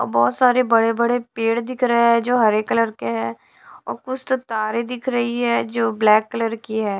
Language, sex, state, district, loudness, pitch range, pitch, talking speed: Hindi, female, Odisha, Sambalpur, -19 LUFS, 215-245 Hz, 230 Hz, 205 wpm